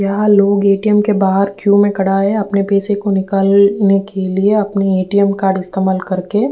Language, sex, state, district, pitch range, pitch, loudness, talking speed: Hindi, female, Uttar Pradesh, Ghazipur, 195-205 Hz, 200 Hz, -14 LUFS, 195 wpm